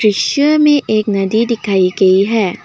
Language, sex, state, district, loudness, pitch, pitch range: Hindi, female, Assam, Kamrup Metropolitan, -13 LUFS, 215 Hz, 195-235 Hz